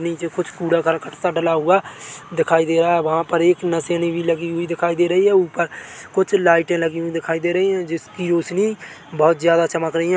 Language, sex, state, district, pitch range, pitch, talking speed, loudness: Hindi, male, Chhattisgarh, Bilaspur, 165-175 Hz, 170 Hz, 225 wpm, -19 LUFS